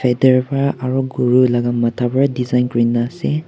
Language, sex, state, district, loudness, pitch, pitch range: Nagamese, male, Nagaland, Kohima, -16 LUFS, 125 Hz, 120-130 Hz